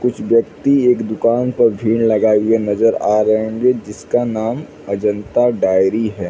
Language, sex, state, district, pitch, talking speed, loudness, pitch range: Hindi, male, Chhattisgarh, Raigarh, 115 Hz, 160 wpm, -16 LUFS, 105-120 Hz